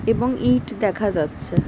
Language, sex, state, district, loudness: Bengali, female, West Bengal, Jhargram, -21 LUFS